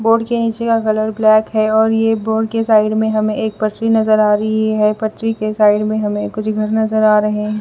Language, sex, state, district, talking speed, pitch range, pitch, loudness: Hindi, female, Bihar, West Champaran, 235 wpm, 215-220 Hz, 215 Hz, -15 LUFS